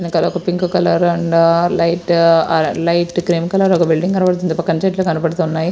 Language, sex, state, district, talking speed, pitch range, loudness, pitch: Telugu, female, Andhra Pradesh, Srikakulam, 165 wpm, 165-180 Hz, -15 LUFS, 170 Hz